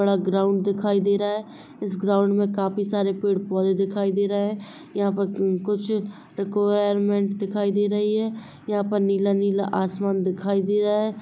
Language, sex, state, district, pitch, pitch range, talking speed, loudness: Hindi, female, Jharkhand, Jamtara, 200 Hz, 195-205 Hz, 165 wpm, -23 LUFS